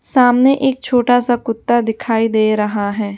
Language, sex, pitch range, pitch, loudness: Hindi, female, 215-250 Hz, 235 Hz, -15 LUFS